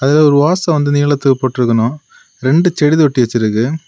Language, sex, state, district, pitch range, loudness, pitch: Tamil, male, Tamil Nadu, Kanyakumari, 125-150 Hz, -13 LUFS, 145 Hz